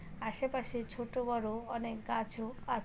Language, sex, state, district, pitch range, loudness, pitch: Bengali, female, West Bengal, Jalpaiguri, 225-240 Hz, -38 LUFS, 230 Hz